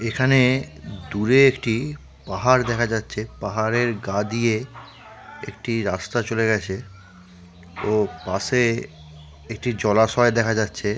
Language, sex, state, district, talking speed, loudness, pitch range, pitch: Bengali, male, West Bengal, Purulia, 110 wpm, -21 LUFS, 95-120 Hz, 110 Hz